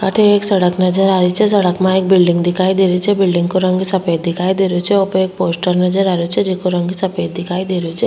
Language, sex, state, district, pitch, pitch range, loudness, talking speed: Rajasthani, female, Rajasthan, Churu, 185 Hz, 180-190 Hz, -14 LUFS, 280 wpm